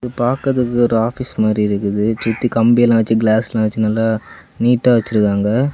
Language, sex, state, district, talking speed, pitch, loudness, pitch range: Tamil, male, Tamil Nadu, Kanyakumari, 155 wpm, 115 Hz, -16 LUFS, 110-120 Hz